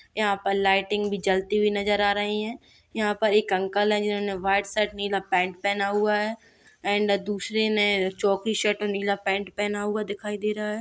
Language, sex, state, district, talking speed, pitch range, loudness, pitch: Hindi, female, Bihar, Gopalganj, 200 wpm, 200-210 Hz, -25 LUFS, 205 Hz